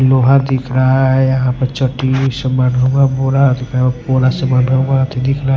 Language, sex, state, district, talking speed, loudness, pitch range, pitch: Hindi, male, Punjab, Pathankot, 170 wpm, -13 LUFS, 130-135 Hz, 130 Hz